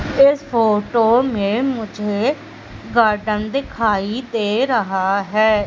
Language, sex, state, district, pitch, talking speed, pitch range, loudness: Hindi, female, Madhya Pradesh, Umaria, 220 Hz, 95 wpm, 210-245 Hz, -18 LUFS